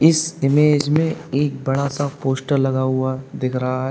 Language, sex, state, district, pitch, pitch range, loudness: Hindi, male, Uttar Pradesh, Lalitpur, 135 Hz, 130-150 Hz, -19 LUFS